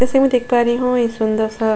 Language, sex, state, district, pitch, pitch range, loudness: Hindi, female, Goa, North and South Goa, 240 Hz, 220-250 Hz, -17 LUFS